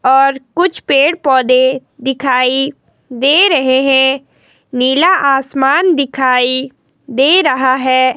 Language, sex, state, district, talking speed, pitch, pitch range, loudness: Hindi, female, Himachal Pradesh, Shimla, 105 wpm, 270 Hz, 260-280 Hz, -12 LUFS